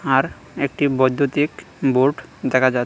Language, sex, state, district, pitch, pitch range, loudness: Bengali, male, Tripura, West Tripura, 135 Hz, 130-140 Hz, -20 LUFS